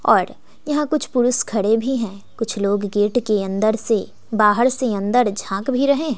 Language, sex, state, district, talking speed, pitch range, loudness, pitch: Hindi, female, Bihar, West Champaran, 185 wpm, 205-255 Hz, -19 LUFS, 225 Hz